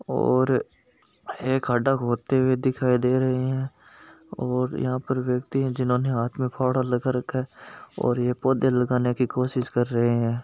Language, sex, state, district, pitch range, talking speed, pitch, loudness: Hindi, male, Rajasthan, Nagaur, 125-130 Hz, 165 wpm, 125 Hz, -24 LUFS